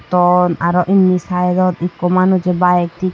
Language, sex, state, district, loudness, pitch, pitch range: Chakma, female, Tripura, Unakoti, -14 LUFS, 180 Hz, 180-185 Hz